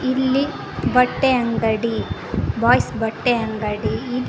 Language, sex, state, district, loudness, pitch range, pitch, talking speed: Kannada, female, Karnataka, Koppal, -20 LUFS, 225-260 Hz, 245 Hz, 85 wpm